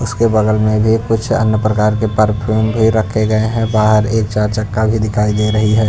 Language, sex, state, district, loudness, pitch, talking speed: Hindi, male, Punjab, Pathankot, -14 LUFS, 110 Hz, 225 wpm